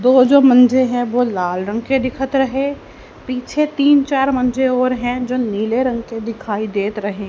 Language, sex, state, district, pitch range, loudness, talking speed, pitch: Hindi, female, Haryana, Jhajjar, 225-265 Hz, -16 LUFS, 190 wpm, 250 Hz